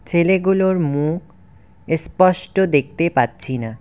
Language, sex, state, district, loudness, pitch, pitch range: Bengali, male, West Bengal, Cooch Behar, -18 LUFS, 160 Hz, 120-185 Hz